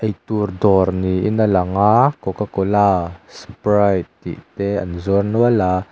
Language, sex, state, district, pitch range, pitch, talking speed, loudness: Mizo, male, Mizoram, Aizawl, 95-105 Hz, 100 Hz, 140 wpm, -17 LUFS